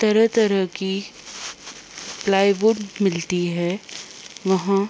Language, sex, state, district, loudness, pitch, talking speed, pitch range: Hindi, female, Uttar Pradesh, Deoria, -21 LUFS, 195 Hz, 75 wpm, 190-210 Hz